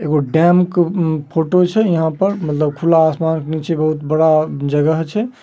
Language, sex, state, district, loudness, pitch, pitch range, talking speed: Magahi, male, Bihar, Samastipur, -16 LUFS, 160 Hz, 155-175 Hz, 190 wpm